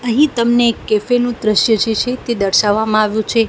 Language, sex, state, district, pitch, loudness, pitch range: Gujarati, female, Gujarat, Gandhinagar, 225 Hz, -15 LUFS, 215-240 Hz